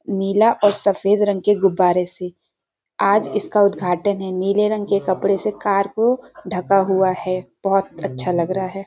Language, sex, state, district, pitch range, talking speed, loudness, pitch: Hindi, female, Chhattisgarh, Sarguja, 185-205 Hz, 175 wpm, -19 LUFS, 195 Hz